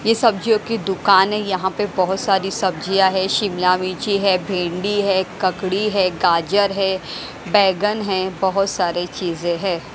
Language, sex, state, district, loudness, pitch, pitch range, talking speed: Hindi, female, Haryana, Jhajjar, -19 LUFS, 190 Hz, 185-200 Hz, 155 wpm